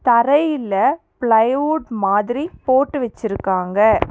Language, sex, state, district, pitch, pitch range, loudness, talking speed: Tamil, female, Tamil Nadu, Nilgiris, 240 Hz, 210-285 Hz, -18 LUFS, 75 wpm